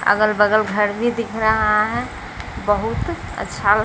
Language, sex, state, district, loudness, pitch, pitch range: Hindi, female, Bihar, Patna, -19 LUFS, 215 Hz, 210-220 Hz